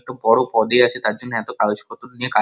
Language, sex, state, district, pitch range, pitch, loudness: Bengali, male, West Bengal, Kolkata, 110-125 Hz, 115 Hz, -18 LUFS